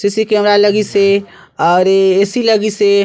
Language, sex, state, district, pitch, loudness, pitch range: Chhattisgarhi, male, Chhattisgarh, Sarguja, 200 Hz, -12 LUFS, 195-210 Hz